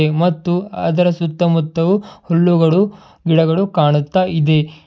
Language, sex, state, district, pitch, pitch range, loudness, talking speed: Kannada, male, Karnataka, Bidar, 170 Hz, 160-180 Hz, -16 LUFS, 85 wpm